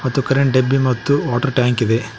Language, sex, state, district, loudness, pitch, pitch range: Kannada, male, Karnataka, Koppal, -17 LUFS, 130 Hz, 120-135 Hz